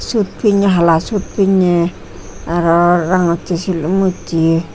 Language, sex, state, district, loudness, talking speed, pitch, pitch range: Chakma, female, Tripura, Unakoti, -14 LUFS, 115 wpm, 175 Hz, 165-190 Hz